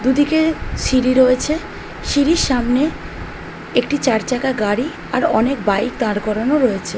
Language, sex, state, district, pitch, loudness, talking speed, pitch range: Bengali, female, West Bengal, Malda, 255 Hz, -17 LUFS, 130 wpm, 225-285 Hz